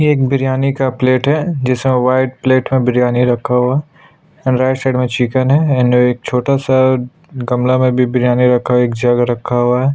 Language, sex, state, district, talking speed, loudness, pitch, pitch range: Hindi, male, Chhattisgarh, Sukma, 215 wpm, -14 LUFS, 130 Hz, 125-135 Hz